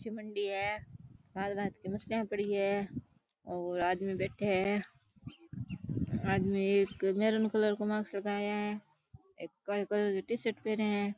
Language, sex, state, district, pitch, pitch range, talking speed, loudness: Rajasthani, female, Rajasthan, Churu, 205 Hz, 195-210 Hz, 150 wpm, -34 LUFS